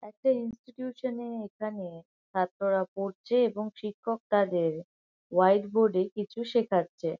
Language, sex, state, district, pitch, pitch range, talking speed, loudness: Bengali, female, West Bengal, North 24 Parganas, 210 Hz, 185-235 Hz, 115 wpm, -29 LUFS